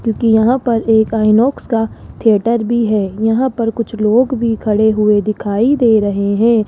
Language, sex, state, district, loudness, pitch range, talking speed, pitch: Hindi, female, Rajasthan, Jaipur, -14 LUFS, 215-235 Hz, 180 wpm, 225 Hz